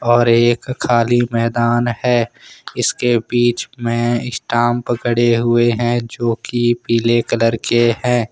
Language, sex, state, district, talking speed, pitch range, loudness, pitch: Hindi, male, Jharkhand, Ranchi, 125 wpm, 115-120 Hz, -16 LUFS, 120 Hz